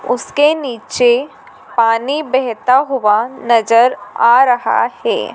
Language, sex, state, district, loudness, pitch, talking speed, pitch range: Hindi, female, Madhya Pradesh, Dhar, -14 LUFS, 255 Hz, 100 wpm, 235-290 Hz